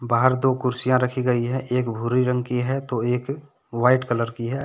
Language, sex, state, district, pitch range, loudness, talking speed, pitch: Hindi, male, Jharkhand, Deoghar, 120-130 Hz, -22 LUFS, 220 wpm, 125 Hz